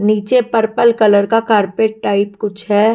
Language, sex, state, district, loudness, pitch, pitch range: Hindi, female, Punjab, Kapurthala, -14 LUFS, 215 Hz, 205-225 Hz